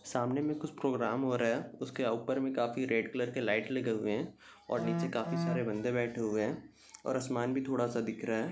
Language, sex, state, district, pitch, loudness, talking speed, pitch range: Hindi, male, Bihar, Saharsa, 120 Hz, -34 LUFS, 210 wpm, 115-130 Hz